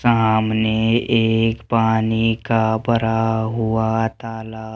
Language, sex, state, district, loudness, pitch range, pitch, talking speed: Hindi, male, Rajasthan, Jaipur, -19 LUFS, 110-115 Hz, 110 Hz, 90 wpm